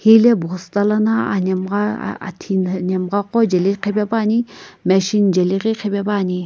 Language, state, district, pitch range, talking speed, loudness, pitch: Sumi, Nagaland, Kohima, 185-215 Hz, 140 wpm, -18 LUFS, 205 Hz